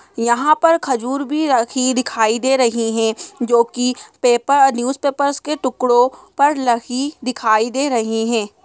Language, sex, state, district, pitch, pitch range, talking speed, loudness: Hindi, male, Bihar, Muzaffarpur, 255 Hz, 235-280 Hz, 145 wpm, -17 LUFS